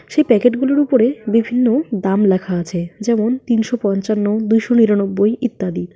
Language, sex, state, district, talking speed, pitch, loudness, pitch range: Bengali, female, West Bengal, Alipurduar, 140 wpm, 220 Hz, -16 LUFS, 200-245 Hz